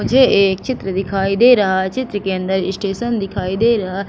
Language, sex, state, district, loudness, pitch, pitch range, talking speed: Hindi, female, Madhya Pradesh, Katni, -16 LUFS, 195 Hz, 190-230 Hz, 205 wpm